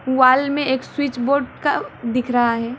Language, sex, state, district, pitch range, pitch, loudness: Hindi, female, West Bengal, Alipurduar, 245-280 Hz, 260 Hz, -19 LUFS